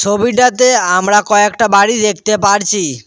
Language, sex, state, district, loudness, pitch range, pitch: Bengali, male, West Bengal, Cooch Behar, -11 LUFS, 200-225 Hz, 205 Hz